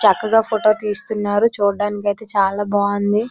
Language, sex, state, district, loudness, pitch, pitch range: Telugu, female, Andhra Pradesh, Srikakulam, -18 LUFS, 205 Hz, 205-215 Hz